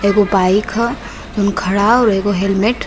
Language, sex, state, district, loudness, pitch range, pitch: Bhojpuri, female, Uttar Pradesh, Varanasi, -15 LUFS, 195-220 Hz, 200 Hz